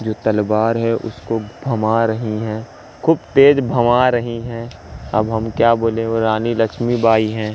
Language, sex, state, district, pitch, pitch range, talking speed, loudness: Hindi, male, Madhya Pradesh, Katni, 115 Hz, 110-120 Hz, 160 wpm, -17 LUFS